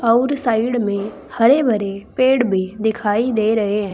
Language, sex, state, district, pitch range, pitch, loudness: Hindi, female, Uttar Pradesh, Saharanpur, 205-245 Hz, 225 Hz, -18 LUFS